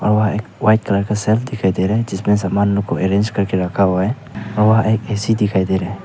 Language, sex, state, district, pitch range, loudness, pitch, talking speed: Hindi, male, Arunachal Pradesh, Papum Pare, 95-110 Hz, -17 LUFS, 105 Hz, 260 wpm